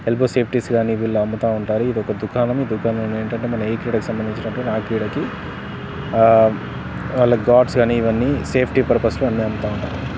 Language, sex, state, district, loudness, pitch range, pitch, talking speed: Telugu, male, Telangana, Karimnagar, -19 LUFS, 110-120 Hz, 115 Hz, 170 wpm